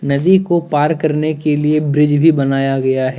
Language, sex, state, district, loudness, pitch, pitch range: Hindi, male, Jharkhand, Deoghar, -14 LUFS, 150 Hz, 140-155 Hz